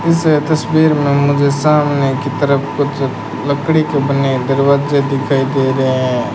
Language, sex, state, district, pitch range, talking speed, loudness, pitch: Hindi, male, Rajasthan, Bikaner, 135-145 Hz, 150 wpm, -14 LUFS, 140 Hz